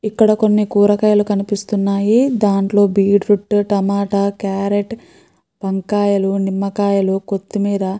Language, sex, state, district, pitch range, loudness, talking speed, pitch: Telugu, female, Andhra Pradesh, Guntur, 195-205 Hz, -16 LUFS, 90 wpm, 200 Hz